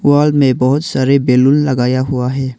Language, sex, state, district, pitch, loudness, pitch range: Hindi, male, Arunachal Pradesh, Longding, 130 Hz, -13 LUFS, 130-145 Hz